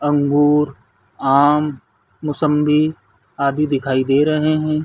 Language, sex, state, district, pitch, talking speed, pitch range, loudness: Hindi, male, Chhattisgarh, Bilaspur, 150 Hz, 100 wpm, 140-150 Hz, -17 LUFS